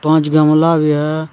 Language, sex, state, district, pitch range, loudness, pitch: Hindi, male, Jharkhand, Deoghar, 150-155 Hz, -13 LUFS, 155 Hz